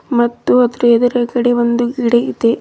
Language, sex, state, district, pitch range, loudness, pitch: Kannada, female, Karnataka, Bidar, 235-245 Hz, -14 LUFS, 240 Hz